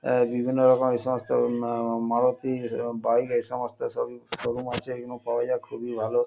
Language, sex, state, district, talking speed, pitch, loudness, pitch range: Bengali, male, West Bengal, North 24 Parganas, 170 wpm, 125 Hz, -26 LUFS, 120-130 Hz